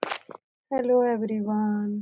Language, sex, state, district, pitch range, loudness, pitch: Hindi, female, Bihar, Jahanabad, 210-245 Hz, -26 LUFS, 215 Hz